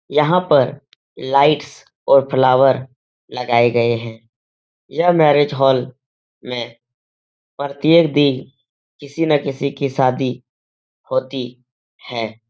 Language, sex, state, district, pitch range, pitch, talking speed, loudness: Hindi, male, Uttar Pradesh, Etah, 120-140 Hz, 130 Hz, 100 wpm, -17 LUFS